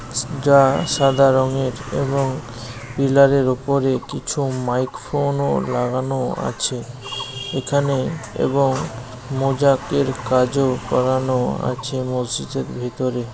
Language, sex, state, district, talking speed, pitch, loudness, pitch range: Bengali, male, West Bengal, Jalpaiguri, 75 wpm, 130 Hz, -20 LUFS, 125-140 Hz